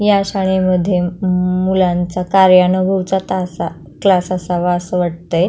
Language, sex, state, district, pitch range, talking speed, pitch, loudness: Marathi, female, Maharashtra, Pune, 175-190 Hz, 120 wpm, 185 Hz, -15 LUFS